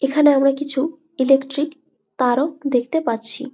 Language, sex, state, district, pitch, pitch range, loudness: Bengali, female, West Bengal, Malda, 280 Hz, 265-300 Hz, -19 LUFS